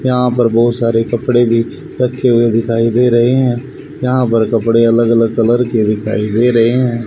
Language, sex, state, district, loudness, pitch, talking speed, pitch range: Hindi, male, Haryana, Rohtak, -13 LUFS, 120 Hz, 195 wpm, 115-125 Hz